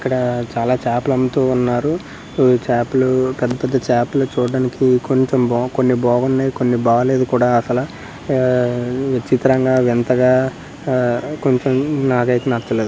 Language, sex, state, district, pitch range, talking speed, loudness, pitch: Telugu, male, Andhra Pradesh, Srikakulam, 120-130 Hz, 105 wpm, -17 LUFS, 125 Hz